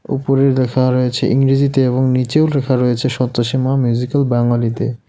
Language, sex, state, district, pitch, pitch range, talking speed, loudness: Bengali, male, West Bengal, Alipurduar, 130 Hz, 125-135 Hz, 155 wpm, -15 LUFS